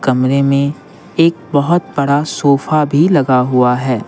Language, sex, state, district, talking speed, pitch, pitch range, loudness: Hindi, male, Bihar, Patna, 145 wpm, 140 Hz, 130-155 Hz, -13 LUFS